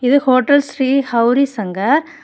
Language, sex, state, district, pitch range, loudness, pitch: Tamil, female, Tamil Nadu, Kanyakumari, 245-280 Hz, -15 LUFS, 270 Hz